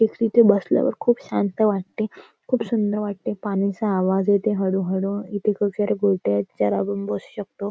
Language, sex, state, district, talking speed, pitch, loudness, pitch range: Marathi, female, Maharashtra, Nagpur, 130 wpm, 205 Hz, -22 LUFS, 190-210 Hz